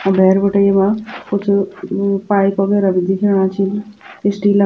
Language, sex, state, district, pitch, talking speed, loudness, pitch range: Garhwali, female, Uttarakhand, Tehri Garhwal, 200 Hz, 155 wpm, -16 LUFS, 195-205 Hz